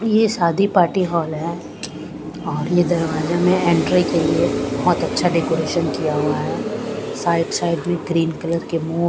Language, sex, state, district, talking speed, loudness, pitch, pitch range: Hindi, female, Punjab, Pathankot, 165 wpm, -19 LUFS, 170 Hz, 160-175 Hz